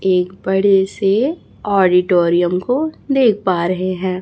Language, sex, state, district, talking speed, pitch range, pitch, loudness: Hindi, female, Chhattisgarh, Raipur, 130 wpm, 180-205 Hz, 190 Hz, -16 LUFS